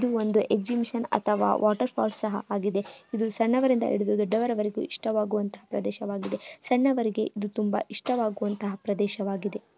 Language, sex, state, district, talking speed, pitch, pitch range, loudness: Kannada, female, Karnataka, Chamarajanagar, 100 wpm, 215 Hz, 205-235 Hz, -27 LUFS